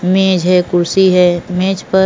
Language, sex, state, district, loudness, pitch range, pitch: Hindi, female, Goa, North and South Goa, -12 LUFS, 180-190 Hz, 180 Hz